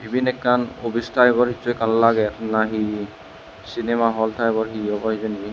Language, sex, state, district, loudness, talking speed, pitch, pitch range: Chakma, male, Tripura, West Tripura, -21 LUFS, 160 wpm, 115 Hz, 110-120 Hz